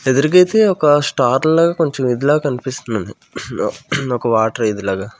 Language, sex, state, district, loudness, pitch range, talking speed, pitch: Telugu, male, Andhra Pradesh, Manyam, -16 LUFS, 120-155 Hz, 140 wpm, 135 Hz